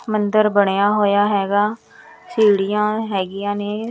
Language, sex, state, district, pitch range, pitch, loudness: Punjabi, female, Punjab, Kapurthala, 200-215 Hz, 205 Hz, -18 LUFS